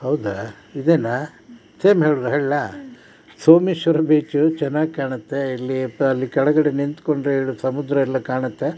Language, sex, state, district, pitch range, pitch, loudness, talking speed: Kannada, male, Karnataka, Dakshina Kannada, 130-155 Hz, 145 Hz, -19 LUFS, 110 wpm